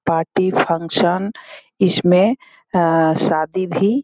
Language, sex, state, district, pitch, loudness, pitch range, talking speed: Hindi, female, Bihar, Sitamarhi, 180 Hz, -17 LUFS, 165-195 Hz, 90 wpm